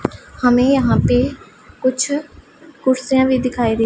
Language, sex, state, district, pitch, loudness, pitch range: Hindi, female, Punjab, Pathankot, 255 Hz, -17 LUFS, 250-265 Hz